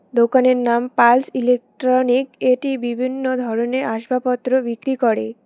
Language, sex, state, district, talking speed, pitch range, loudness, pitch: Bengali, female, West Bengal, Cooch Behar, 110 wpm, 235-255 Hz, -18 LUFS, 250 Hz